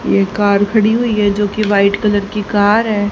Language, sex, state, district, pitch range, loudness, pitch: Hindi, female, Haryana, Charkhi Dadri, 205-215 Hz, -14 LUFS, 205 Hz